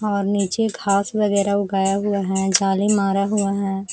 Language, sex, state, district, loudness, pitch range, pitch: Hindi, female, Uttar Pradesh, Jalaun, -20 LUFS, 195-205 Hz, 200 Hz